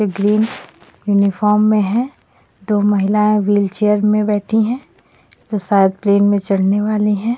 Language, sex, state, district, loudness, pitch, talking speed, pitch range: Hindi, female, Jharkhand, Ranchi, -15 LUFS, 210 Hz, 145 wpm, 200-215 Hz